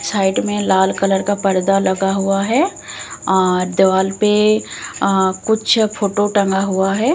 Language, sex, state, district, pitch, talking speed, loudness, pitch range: Hindi, female, Bihar, Katihar, 195 Hz, 150 wpm, -16 LUFS, 190-205 Hz